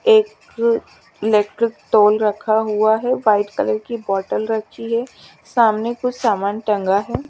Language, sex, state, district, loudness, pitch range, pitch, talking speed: Hindi, female, Chandigarh, Chandigarh, -18 LUFS, 210-235 Hz, 220 Hz, 125 wpm